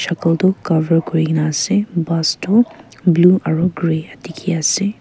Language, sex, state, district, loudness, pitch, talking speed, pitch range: Nagamese, female, Nagaland, Kohima, -16 LUFS, 170 Hz, 155 wpm, 160-190 Hz